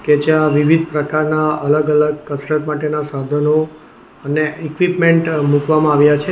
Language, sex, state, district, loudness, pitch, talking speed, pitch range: Gujarati, male, Gujarat, Valsad, -15 LUFS, 150 Hz, 135 wpm, 150-155 Hz